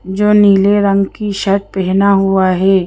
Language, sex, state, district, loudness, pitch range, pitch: Hindi, female, Madhya Pradesh, Bhopal, -12 LUFS, 190-200 Hz, 195 Hz